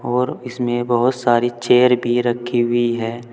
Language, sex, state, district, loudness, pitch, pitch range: Hindi, male, Uttar Pradesh, Saharanpur, -18 LUFS, 120 Hz, 120-125 Hz